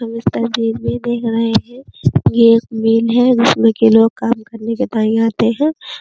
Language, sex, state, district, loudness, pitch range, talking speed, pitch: Hindi, female, Uttar Pradesh, Jyotiba Phule Nagar, -14 LUFS, 225-240 Hz, 220 wpm, 230 Hz